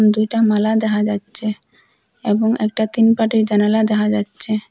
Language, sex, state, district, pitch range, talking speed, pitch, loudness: Bengali, female, Assam, Hailakandi, 210-220 Hz, 155 wpm, 215 Hz, -17 LUFS